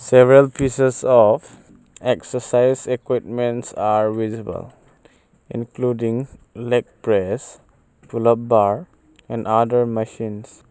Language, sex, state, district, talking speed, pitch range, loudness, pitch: English, male, Arunachal Pradesh, Papum Pare, 90 wpm, 110-125 Hz, -19 LUFS, 120 Hz